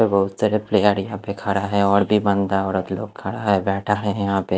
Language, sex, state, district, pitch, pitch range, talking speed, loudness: Hindi, male, Haryana, Rohtak, 100 Hz, 95-105 Hz, 250 wpm, -20 LUFS